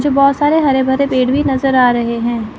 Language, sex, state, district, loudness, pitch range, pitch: Hindi, female, Chandigarh, Chandigarh, -13 LUFS, 245-280 Hz, 270 Hz